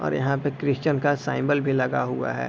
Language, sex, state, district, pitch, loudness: Hindi, male, Uttar Pradesh, Deoria, 135 Hz, -24 LUFS